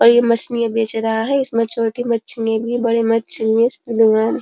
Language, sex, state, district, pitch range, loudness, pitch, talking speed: Hindi, female, Uttar Pradesh, Jyotiba Phule Nagar, 225-235 Hz, -15 LUFS, 230 Hz, 150 wpm